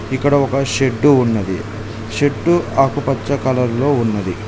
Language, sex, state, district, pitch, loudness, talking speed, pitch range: Telugu, male, Telangana, Mahabubabad, 125 Hz, -16 LUFS, 120 wpm, 110-135 Hz